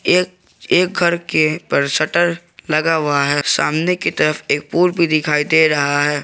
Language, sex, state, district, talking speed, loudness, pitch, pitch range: Hindi, male, Jharkhand, Garhwa, 180 wpm, -16 LUFS, 155 Hz, 150-175 Hz